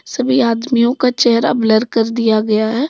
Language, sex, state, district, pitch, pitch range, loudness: Hindi, female, Jharkhand, Deoghar, 235 Hz, 225-250 Hz, -14 LUFS